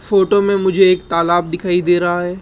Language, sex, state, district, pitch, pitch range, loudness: Hindi, male, Rajasthan, Jaipur, 180 Hz, 175-190 Hz, -15 LUFS